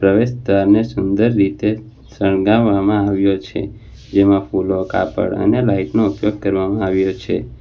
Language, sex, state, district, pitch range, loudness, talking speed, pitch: Gujarati, male, Gujarat, Valsad, 95-105 Hz, -16 LUFS, 125 wpm, 100 Hz